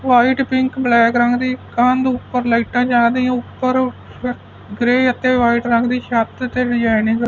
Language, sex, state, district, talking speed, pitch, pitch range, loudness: Punjabi, male, Punjab, Fazilka, 155 wpm, 245 Hz, 235-255 Hz, -16 LUFS